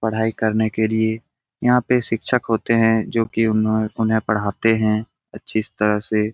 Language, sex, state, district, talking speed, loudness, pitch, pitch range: Hindi, male, Bihar, Jamui, 160 wpm, -20 LUFS, 110 Hz, 110-115 Hz